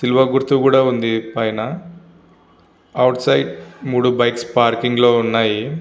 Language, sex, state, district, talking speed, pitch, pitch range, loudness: Telugu, male, Andhra Pradesh, Visakhapatnam, 125 wpm, 120 Hz, 115-130 Hz, -16 LUFS